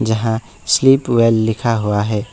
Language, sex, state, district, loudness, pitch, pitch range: Hindi, male, West Bengal, Alipurduar, -15 LUFS, 115 Hz, 110-120 Hz